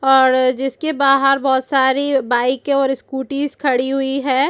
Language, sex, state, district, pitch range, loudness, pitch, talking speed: Hindi, female, Chhattisgarh, Rajnandgaon, 265-275 Hz, -16 LUFS, 270 Hz, 145 wpm